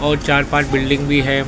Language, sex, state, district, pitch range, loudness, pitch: Hindi, male, Maharashtra, Mumbai Suburban, 135-145 Hz, -16 LUFS, 140 Hz